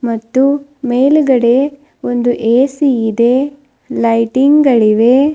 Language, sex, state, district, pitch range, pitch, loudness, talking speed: Kannada, female, Karnataka, Bidar, 235-280 Hz, 260 Hz, -12 LUFS, 80 wpm